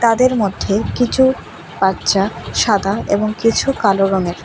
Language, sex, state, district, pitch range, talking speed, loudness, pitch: Bengali, female, Tripura, West Tripura, 195-235 Hz, 120 wpm, -16 LUFS, 210 Hz